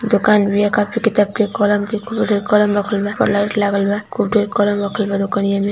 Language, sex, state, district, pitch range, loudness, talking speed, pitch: Hindi, female, Uttar Pradesh, Ghazipur, 205-210 Hz, -17 LUFS, 250 wpm, 205 Hz